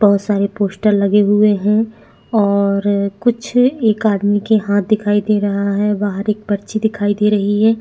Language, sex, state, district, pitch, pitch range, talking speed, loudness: Hindi, female, Chhattisgarh, Sukma, 205 Hz, 200-215 Hz, 175 wpm, -15 LUFS